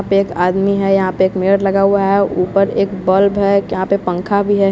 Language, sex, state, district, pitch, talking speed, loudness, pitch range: Hindi, male, Bihar, West Champaran, 195 Hz, 255 wpm, -14 LUFS, 190-200 Hz